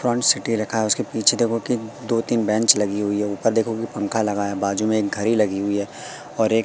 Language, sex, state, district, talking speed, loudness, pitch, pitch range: Hindi, male, Madhya Pradesh, Katni, 245 wpm, -21 LUFS, 110 Hz, 105-115 Hz